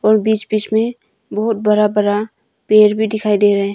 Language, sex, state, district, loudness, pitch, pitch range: Hindi, female, Arunachal Pradesh, Longding, -15 LUFS, 215 Hz, 210-220 Hz